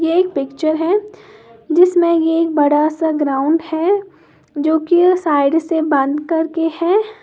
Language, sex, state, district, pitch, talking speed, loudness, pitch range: Hindi, female, Uttar Pradesh, Lalitpur, 325 Hz, 150 wpm, -16 LUFS, 300-355 Hz